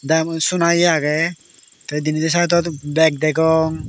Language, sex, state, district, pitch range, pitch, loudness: Chakma, male, Tripura, Dhalai, 155-170 Hz, 160 Hz, -17 LUFS